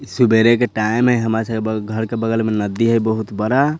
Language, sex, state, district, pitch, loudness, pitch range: Bhojpuri, male, Bihar, Sitamarhi, 115 Hz, -17 LUFS, 110-120 Hz